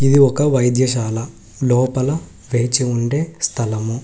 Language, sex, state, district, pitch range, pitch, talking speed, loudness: Telugu, male, Telangana, Hyderabad, 115-135 Hz, 125 Hz, 105 wpm, -18 LUFS